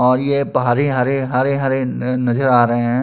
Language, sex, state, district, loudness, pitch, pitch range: Hindi, male, Uttar Pradesh, Muzaffarnagar, -17 LUFS, 130 Hz, 125-135 Hz